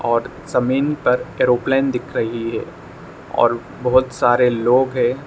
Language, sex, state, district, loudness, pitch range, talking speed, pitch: Hindi, male, Arunachal Pradesh, Lower Dibang Valley, -18 LUFS, 120-130 Hz, 135 wpm, 125 Hz